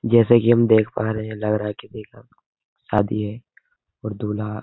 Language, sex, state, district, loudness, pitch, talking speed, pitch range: Hindi, male, Uttar Pradesh, Hamirpur, -20 LUFS, 110 Hz, 235 wpm, 105-115 Hz